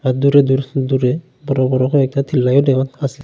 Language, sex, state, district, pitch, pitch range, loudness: Bengali, male, Tripura, Unakoti, 135 Hz, 130-140 Hz, -16 LUFS